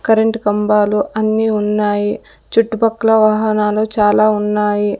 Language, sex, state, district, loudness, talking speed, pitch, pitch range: Telugu, female, Andhra Pradesh, Sri Satya Sai, -15 LUFS, 95 wpm, 215 Hz, 210-220 Hz